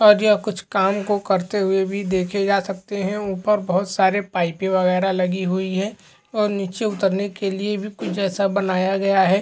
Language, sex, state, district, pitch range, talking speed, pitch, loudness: Hindi, male, Uttar Pradesh, Hamirpur, 190-205 Hz, 190 wpm, 195 Hz, -21 LUFS